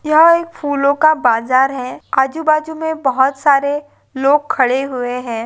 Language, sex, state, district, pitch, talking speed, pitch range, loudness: Hindi, female, Maharashtra, Pune, 280 Hz, 165 wpm, 260-310 Hz, -15 LUFS